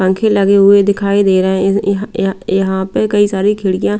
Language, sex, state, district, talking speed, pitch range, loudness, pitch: Hindi, female, Bihar, Patna, 210 wpm, 190-200 Hz, -13 LUFS, 195 Hz